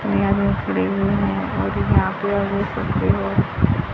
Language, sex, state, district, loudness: Hindi, female, Haryana, Rohtak, -20 LUFS